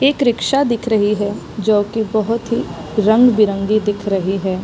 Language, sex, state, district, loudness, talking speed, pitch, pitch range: Hindi, female, Bihar, East Champaran, -16 LUFS, 170 wpm, 215 Hz, 200-230 Hz